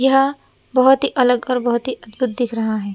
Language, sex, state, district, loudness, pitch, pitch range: Hindi, male, Maharashtra, Gondia, -17 LUFS, 250 Hz, 235-265 Hz